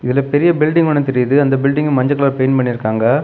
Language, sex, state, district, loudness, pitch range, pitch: Tamil, male, Tamil Nadu, Kanyakumari, -14 LUFS, 130-145 Hz, 140 Hz